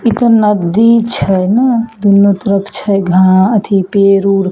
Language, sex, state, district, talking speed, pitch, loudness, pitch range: Maithili, female, Bihar, Samastipur, 170 wpm, 200 Hz, -10 LUFS, 195-225 Hz